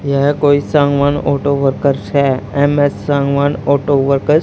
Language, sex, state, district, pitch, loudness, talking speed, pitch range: Hindi, male, Haryana, Charkhi Dadri, 140 Hz, -14 LUFS, 150 wpm, 140-145 Hz